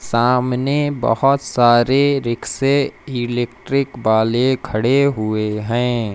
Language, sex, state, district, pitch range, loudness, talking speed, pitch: Hindi, male, Madhya Pradesh, Umaria, 115-135 Hz, -17 LUFS, 90 wpm, 125 Hz